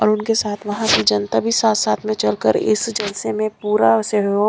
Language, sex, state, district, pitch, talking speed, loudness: Hindi, female, Punjab, Kapurthala, 210 Hz, 225 wpm, -18 LUFS